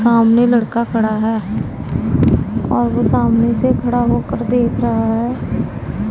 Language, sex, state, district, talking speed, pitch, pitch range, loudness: Hindi, female, Punjab, Pathankot, 130 wpm, 235 Hz, 225-240 Hz, -16 LUFS